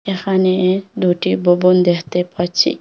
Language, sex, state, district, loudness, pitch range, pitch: Bengali, female, Assam, Hailakandi, -16 LUFS, 175-190 Hz, 180 Hz